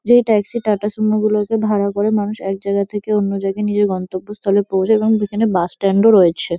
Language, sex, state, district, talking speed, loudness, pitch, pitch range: Bengali, female, West Bengal, Kolkata, 200 wpm, -17 LUFS, 205 Hz, 195-215 Hz